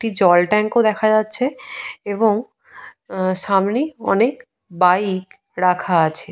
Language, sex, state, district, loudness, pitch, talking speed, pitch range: Bengali, female, Jharkhand, Jamtara, -18 LUFS, 210 Hz, 115 wpm, 185-225 Hz